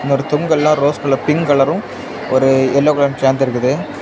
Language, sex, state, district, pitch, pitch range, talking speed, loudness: Tamil, male, Tamil Nadu, Kanyakumari, 140 Hz, 135-150 Hz, 165 wpm, -15 LUFS